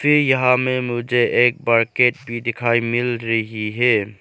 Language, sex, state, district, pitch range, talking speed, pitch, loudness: Hindi, male, Arunachal Pradesh, Lower Dibang Valley, 115-125 Hz, 155 wpm, 120 Hz, -18 LUFS